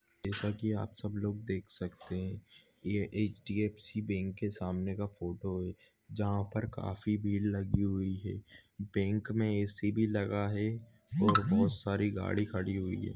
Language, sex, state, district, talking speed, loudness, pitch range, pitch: Hindi, male, Goa, North and South Goa, 170 wpm, -35 LUFS, 95-105 Hz, 100 Hz